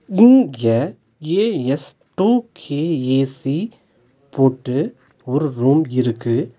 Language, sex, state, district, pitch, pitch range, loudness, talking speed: Tamil, male, Tamil Nadu, Nilgiris, 140 Hz, 125-165 Hz, -18 LUFS, 65 wpm